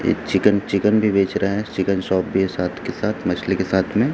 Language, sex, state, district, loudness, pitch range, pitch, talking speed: Hindi, male, Chhattisgarh, Raipur, -20 LUFS, 95-100 Hz, 95 Hz, 245 wpm